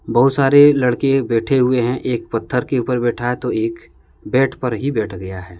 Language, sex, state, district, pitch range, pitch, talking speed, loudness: Hindi, male, Jharkhand, Deoghar, 115-135 Hz, 125 Hz, 215 wpm, -17 LUFS